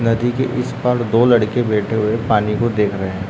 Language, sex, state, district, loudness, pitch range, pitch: Hindi, male, Uttarakhand, Uttarkashi, -17 LUFS, 105-120 Hz, 115 Hz